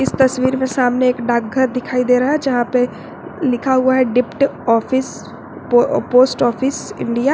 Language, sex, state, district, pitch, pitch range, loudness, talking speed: Hindi, female, Jharkhand, Garhwa, 255 Hz, 245-265 Hz, -16 LUFS, 170 wpm